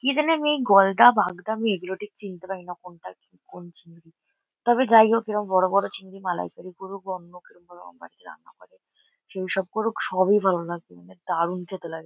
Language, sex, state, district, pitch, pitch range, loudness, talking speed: Bengali, female, West Bengal, Kolkata, 190 Hz, 175-210 Hz, -23 LUFS, 205 wpm